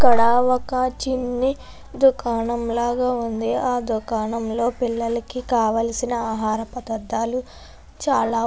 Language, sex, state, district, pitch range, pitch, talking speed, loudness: Telugu, female, Andhra Pradesh, Chittoor, 230-250 Hz, 235 Hz, 100 wpm, -22 LUFS